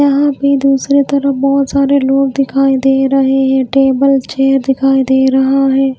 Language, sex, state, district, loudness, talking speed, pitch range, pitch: Hindi, female, Haryana, Rohtak, -11 LUFS, 170 wpm, 270-275 Hz, 270 Hz